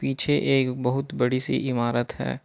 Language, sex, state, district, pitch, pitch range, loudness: Hindi, male, Manipur, Imphal West, 130 Hz, 120-135 Hz, -22 LUFS